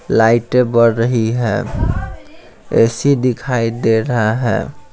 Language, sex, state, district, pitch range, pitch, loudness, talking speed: Hindi, male, Bihar, Patna, 110-125 Hz, 115 Hz, -15 LUFS, 110 wpm